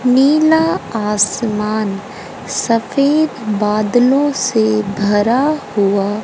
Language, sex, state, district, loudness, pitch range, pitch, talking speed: Hindi, female, Haryana, Jhajjar, -15 LUFS, 210-270 Hz, 220 Hz, 65 wpm